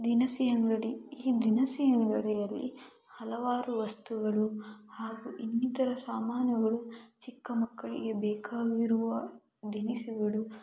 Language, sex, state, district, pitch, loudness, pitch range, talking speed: Kannada, female, Karnataka, Mysore, 230 Hz, -32 LUFS, 220-245 Hz, 80 wpm